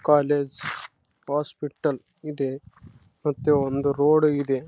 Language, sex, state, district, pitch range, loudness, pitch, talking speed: Kannada, male, Karnataka, Raichur, 135-150 Hz, -24 LUFS, 145 Hz, 115 wpm